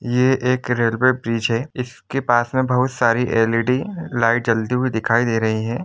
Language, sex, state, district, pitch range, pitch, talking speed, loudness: Hindi, male, Jharkhand, Jamtara, 115-130 Hz, 120 Hz, 205 wpm, -19 LUFS